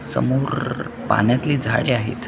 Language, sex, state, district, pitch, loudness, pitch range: Marathi, male, Maharashtra, Washim, 125 Hz, -20 LUFS, 120-135 Hz